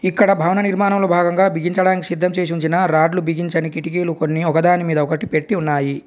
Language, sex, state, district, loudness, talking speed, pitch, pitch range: Telugu, male, Telangana, Komaram Bheem, -17 LUFS, 170 wpm, 175 Hz, 160-185 Hz